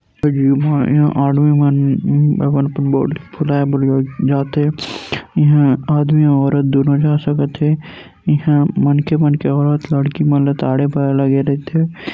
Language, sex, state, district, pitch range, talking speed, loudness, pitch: Chhattisgarhi, male, Chhattisgarh, Rajnandgaon, 140-150 Hz, 145 wpm, -15 LUFS, 145 Hz